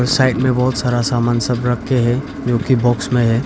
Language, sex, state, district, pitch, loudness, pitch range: Hindi, male, Arunachal Pradesh, Papum Pare, 125 Hz, -16 LUFS, 120-130 Hz